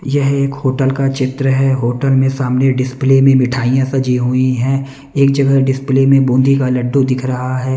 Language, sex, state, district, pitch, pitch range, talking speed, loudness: Hindi, male, Bihar, West Champaran, 135 Hz, 130-135 Hz, 195 wpm, -14 LUFS